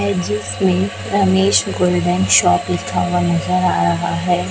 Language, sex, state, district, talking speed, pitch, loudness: Hindi, male, Chhattisgarh, Raipur, 105 wpm, 175 Hz, -16 LUFS